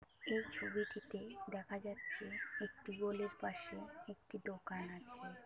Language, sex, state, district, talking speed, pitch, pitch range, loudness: Bengali, female, West Bengal, Kolkata, 130 wpm, 205 Hz, 200-220 Hz, -45 LUFS